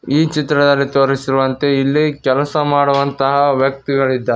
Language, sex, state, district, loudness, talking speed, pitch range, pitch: Kannada, male, Karnataka, Koppal, -15 LUFS, 95 wpm, 135-145 Hz, 140 Hz